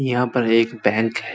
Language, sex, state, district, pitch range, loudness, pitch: Hindi, male, Uttar Pradesh, Muzaffarnagar, 115-125 Hz, -19 LUFS, 115 Hz